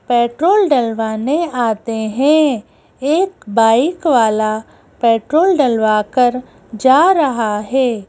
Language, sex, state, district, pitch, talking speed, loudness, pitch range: Hindi, female, Madhya Pradesh, Bhopal, 245 Hz, 80 wpm, -15 LUFS, 225-295 Hz